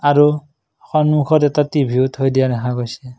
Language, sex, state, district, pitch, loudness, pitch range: Assamese, male, Assam, Kamrup Metropolitan, 145 Hz, -16 LUFS, 125-150 Hz